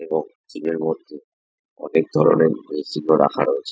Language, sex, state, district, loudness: Bengali, male, West Bengal, Jhargram, -20 LUFS